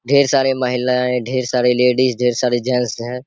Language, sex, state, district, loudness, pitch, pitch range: Hindi, male, Bihar, Saharsa, -17 LUFS, 125 Hz, 125-130 Hz